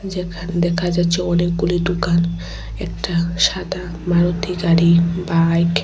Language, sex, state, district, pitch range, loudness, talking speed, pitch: Bengali, female, Tripura, West Tripura, 170-180 Hz, -18 LUFS, 115 wpm, 175 Hz